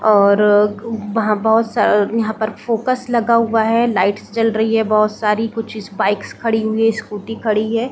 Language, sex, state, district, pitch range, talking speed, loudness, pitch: Hindi, female, Chhattisgarh, Bilaspur, 210-230 Hz, 180 wpm, -16 LUFS, 220 Hz